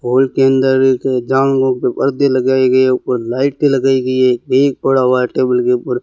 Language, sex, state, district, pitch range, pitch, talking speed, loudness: Hindi, male, Rajasthan, Bikaner, 125-135 Hz, 130 Hz, 210 wpm, -14 LUFS